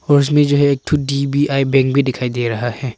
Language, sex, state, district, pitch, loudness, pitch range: Hindi, male, Arunachal Pradesh, Papum Pare, 140 Hz, -16 LUFS, 130-145 Hz